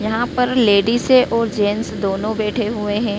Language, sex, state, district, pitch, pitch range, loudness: Hindi, female, Madhya Pradesh, Dhar, 220 Hz, 205-240 Hz, -17 LUFS